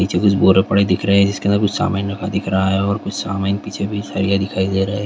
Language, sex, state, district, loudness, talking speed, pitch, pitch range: Hindi, male, Bihar, Darbhanga, -17 LUFS, 330 wpm, 100 Hz, 95-100 Hz